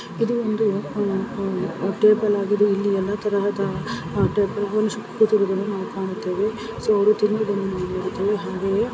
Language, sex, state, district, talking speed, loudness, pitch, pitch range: Kannada, female, Karnataka, Raichur, 40 wpm, -22 LUFS, 205 Hz, 195-215 Hz